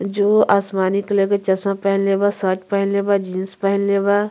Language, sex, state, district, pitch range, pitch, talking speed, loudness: Bhojpuri, female, Uttar Pradesh, Ghazipur, 195-200 Hz, 200 Hz, 180 wpm, -18 LUFS